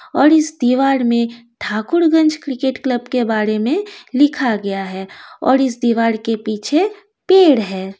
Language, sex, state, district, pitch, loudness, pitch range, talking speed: Hindi, female, Bihar, Kishanganj, 255 Hz, -16 LUFS, 220-310 Hz, 155 wpm